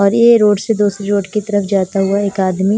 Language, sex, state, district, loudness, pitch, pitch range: Hindi, female, Himachal Pradesh, Shimla, -14 LUFS, 205 Hz, 195-210 Hz